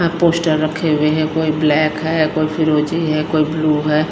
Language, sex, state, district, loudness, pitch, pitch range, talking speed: Hindi, female, Himachal Pradesh, Shimla, -16 LUFS, 155 Hz, 155-160 Hz, 205 wpm